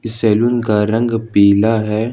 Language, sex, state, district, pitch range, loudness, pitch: Hindi, male, Jharkhand, Ranchi, 105-115 Hz, -14 LUFS, 110 Hz